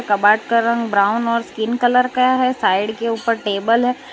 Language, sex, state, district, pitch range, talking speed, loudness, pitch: Hindi, female, Gujarat, Valsad, 215-245 Hz, 130 wpm, -17 LUFS, 230 Hz